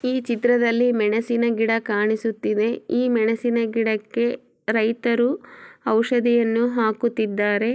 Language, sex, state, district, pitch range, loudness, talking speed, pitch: Kannada, female, Karnataka, Chamarajanagar, 220-240 Hz, -21 LUFS, 85 wpm, 230 Hz